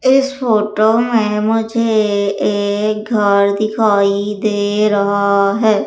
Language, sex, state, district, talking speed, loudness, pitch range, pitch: Hindi, female, Madhya Pradesh, Umaria, 100 wpm, -14 LUFS, 205-220 Hz, 210 Hz